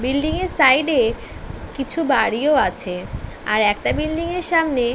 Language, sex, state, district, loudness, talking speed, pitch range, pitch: Bengali, female, West Bengal, North 24 Parganas, -19 LUFS, 145 wpm, 240-330 Hz, 285 Hz